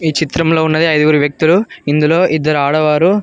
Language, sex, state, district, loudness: Telugu, male, Telangana, Mahabubabad, -12 LUFS